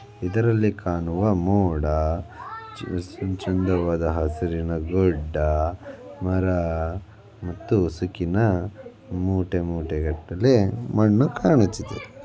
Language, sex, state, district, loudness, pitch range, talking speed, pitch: Kannada, male, Karnataka, Belgaum, -23 LUFS, 85-100 Hz, 70 wpm, 90 Hz